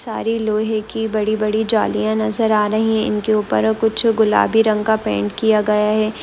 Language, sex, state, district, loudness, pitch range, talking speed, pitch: Hindi, female, West Bengal, Malda, -17 LUFS, 215-220 Hz, 185 wpm, 220 Hz